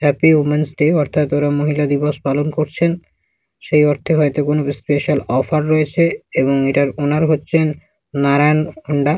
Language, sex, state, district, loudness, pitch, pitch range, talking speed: Bengali, male, West Bengal, Malda, -16 LUFS, 150 Hz, 145-155 Hz, 150 wpm